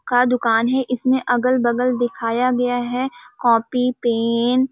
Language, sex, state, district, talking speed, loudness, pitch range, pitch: Hindi, female, Chhattisgarh, Balrampur, 100 wpm, -19 LUFS, 235-255 Hz, 245 Hz